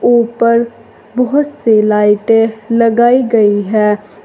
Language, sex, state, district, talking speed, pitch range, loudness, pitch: Hindi, female, Uttar Pradesh, Saharanpur, 100 wpm, 215-235 Hz, -12 LUFS, 225 Hz